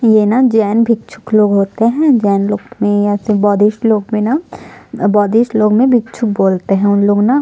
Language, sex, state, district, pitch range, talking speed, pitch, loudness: Hindi, female, Chhattisgarh, Sukma, 205-230 Hz, 195 wpm, 215 Hz, -13 LUFS